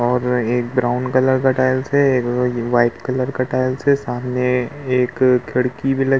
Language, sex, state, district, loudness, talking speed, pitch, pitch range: Hindi, male, Uttar Pradesh, Muzaffarnagar, -18 LUFS, 205 wpm, 125 Hz, 125-130 Hz